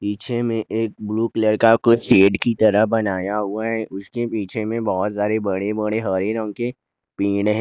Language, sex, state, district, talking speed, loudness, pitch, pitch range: Hindi, male, Jharkhand, Garhwa, 195 wpm, -20 LUFS, 110 Hz, 105-115 Hz